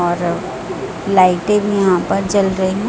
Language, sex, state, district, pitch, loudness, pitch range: Hindi, female, Chhattisgarh, Raipur, 190 Hz, -16 LUFS, 180-200 Hz